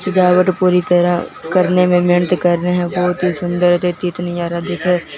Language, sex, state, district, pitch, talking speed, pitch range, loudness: Hindi, male, Punjab, Fazilka, 180 Hz, 150 wpm, 175-180 Hz, -15 LUFS